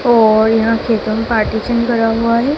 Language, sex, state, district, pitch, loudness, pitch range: Hindi, male, Madhya Pradesh, Dhar, 230 Hz, -14 LUFS, 220-235 Hz